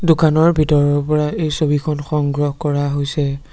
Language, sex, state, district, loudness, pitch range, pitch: Assamese, male, Assam, Sonitpur, -17 LUFS, 145-155 Hz, 150 Hz